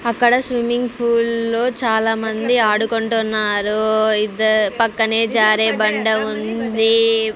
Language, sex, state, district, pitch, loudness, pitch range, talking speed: Telugu, female, Andhra Pradesh, Sri Satya Sai, 225 Hz, -17 LUFS, 215-230 Hz, 90 wpm